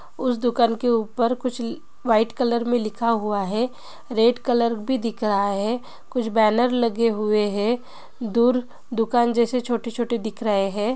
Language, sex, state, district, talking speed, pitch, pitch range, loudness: Hindi, female, Bihar, Gopalganj, 165 wpm, 235 Hz, 220-245 Hz, -22 LUFS